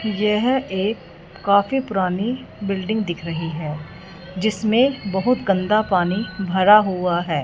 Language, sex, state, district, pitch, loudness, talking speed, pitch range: Hindi, female, Punjab, Fazilka, 195 Hz, -20 LUFS, 120 wpm, 180-215 Hz